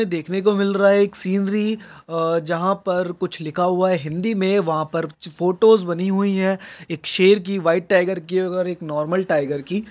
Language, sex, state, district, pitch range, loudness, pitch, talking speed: Hindi, male, Bihar, Jahanabad, 170-195 Hz, -20 LUFS, 185 Hz, 205 wpm